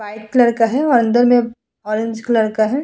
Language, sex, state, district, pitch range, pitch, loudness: Hindi, female, Uttar Pradesh, Hamirpur, 220-245 Hz, 230 Hz, -16 LUFS